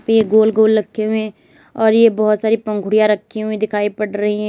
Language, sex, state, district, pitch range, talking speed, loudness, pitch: Hindi, female, Uttar Pradesh, Lalitpur, 210-220 Hz, 225 wpm, -16 LUFS, 215 Hz